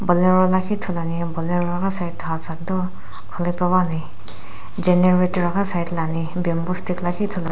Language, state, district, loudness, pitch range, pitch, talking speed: Sumi, Nagaland, Dimapur, -20 LUFS, 165-185 Hz, 175 Hz, 150 wpm